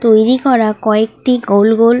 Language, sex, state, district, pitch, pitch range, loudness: Bengali, female, West Bengal, North 24 Parganas, 225 Hz, 215-245 Hz, -12 LUFS